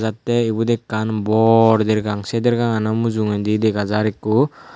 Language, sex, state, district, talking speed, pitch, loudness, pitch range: Chakma, male, Tripura, Unakoti, 140 wpm, 110 Hz, -18 LUFS, 110-115 Hz